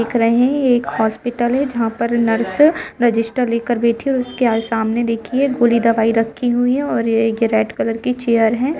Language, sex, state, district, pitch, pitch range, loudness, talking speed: Hindi, female, Jharkhand, Jamtara, 235 Hz, 225-250 Hz, -17 LUFS, 185 wpm